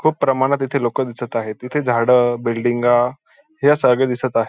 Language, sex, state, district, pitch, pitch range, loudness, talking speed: Marathi, male, Maharashtra, Dhule, 125 Hz, 120-135 Hz, -18 LUFS, 175 wpm